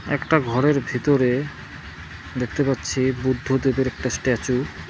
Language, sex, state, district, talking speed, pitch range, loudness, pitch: Bengali, male, West Bengal, Cooch Behar, 110 wpm, 125-135 Hz, -22 LUFS, 130 Hz